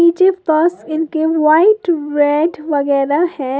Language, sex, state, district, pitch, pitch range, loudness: Hindi, female, Uttar Pradesh, Lalitpur, 315 Hz, 295-340 Hz, -14 LUFS